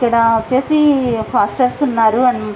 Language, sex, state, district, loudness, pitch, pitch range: Telugu, female, Andhra Pradesh, Visakhapatnam, -14 LUFS, 245 Hz, 225-260 Hz